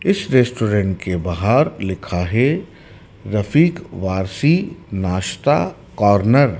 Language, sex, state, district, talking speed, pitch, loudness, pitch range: Hindi, male, Madhya Pradesh, Dhar, 100 wpm, 105 Hz, -18 LUFS, 95-140 Hz